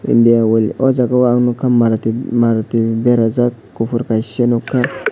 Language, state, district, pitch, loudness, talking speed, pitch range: Kokborok, Tripura, West Tripura, 115 Hz, -15 LUFS, 165 wpm, 115-120 Hz